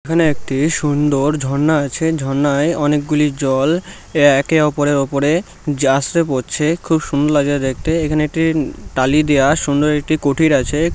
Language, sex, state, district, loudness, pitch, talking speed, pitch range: Bengali, male, West Bengal, North 24 Parganas, -16 LUFS, 150 Hz, 150 wpm, 140-160 Hz